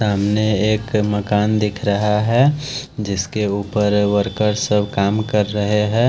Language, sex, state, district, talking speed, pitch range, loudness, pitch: Hindi, male, Haryana, Charkhi Dadri, 140 wpm, 105-110 Hz, -18 LUFS, 105 Hz